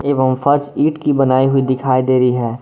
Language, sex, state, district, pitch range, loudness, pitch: Hindi, male, Jharkhand, Garhwa, 130-140 Hz, -15 LUFS, 130 Hz